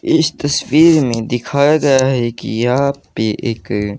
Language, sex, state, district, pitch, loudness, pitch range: Hindi, male, Haryana, Jhajjar, 130 Hz, -15 LUFS, 115-145 Hz